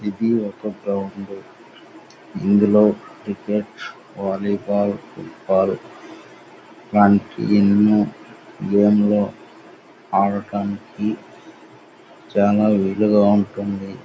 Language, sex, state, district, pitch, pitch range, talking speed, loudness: Telugu, male, Andhra Pradesh, Anantapur, 100 Hz, 100-105 Hz, 65 wpm, -19 LUFS